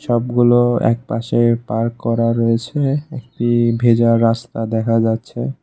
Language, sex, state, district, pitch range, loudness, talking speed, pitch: Bengali, male, Tripura, West Tripura, 115-120 Hz, -17 LUFS, 105 wpm, 115 Hz